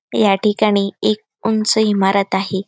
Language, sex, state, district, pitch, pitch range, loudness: Marathi, female, Maharashtra, Chandrapur, 205 Hz, 195-215 Hz, -16 LUFS